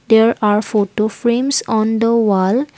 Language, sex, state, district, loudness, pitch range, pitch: English, female, Assam, Kamrup Metropolitan, -15 LUFS, 210-235 Hz, 220 Hz